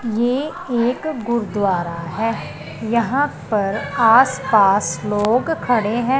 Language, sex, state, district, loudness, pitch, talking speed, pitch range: Hindi, female, Punjab, Pathankot, -18 LUFS, 225 Hz, 95 wpm, 200-245 Hz